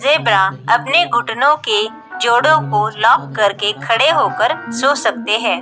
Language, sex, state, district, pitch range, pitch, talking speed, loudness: Hindi, female, Bihar, Katihar, 215-305 Hz, 235 Hz, 140 wpm, -14 LUFS